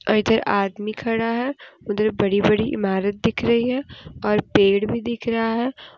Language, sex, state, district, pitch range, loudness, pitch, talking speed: Hindi, female, Jharkhand, Deoghar, 205-235 Hz, -21 LUFS, 215 Hz, 180 wpm